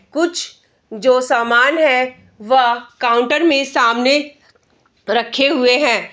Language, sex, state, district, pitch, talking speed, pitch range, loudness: Hindi, female, Bihar, Araria, 255 Hz, 110 wpm, 240-290 Hz, -15 LUFS